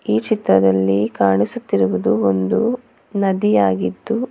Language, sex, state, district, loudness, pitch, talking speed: Kannada, female, Karnataka, Bangalore, -17 LUFS, 100 Hz, 70 wpm